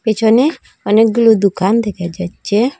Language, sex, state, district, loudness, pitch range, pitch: Bengali, female, Assam, Hailakandi, -14 LUFS, 200-230 Hz, 220 Hz